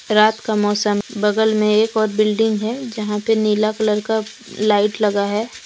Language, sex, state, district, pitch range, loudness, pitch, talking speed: Hindi, female, Jharkhand, Deoghar, 210-220 Hz, -18 LUFS, 215 Hz, 180 wpm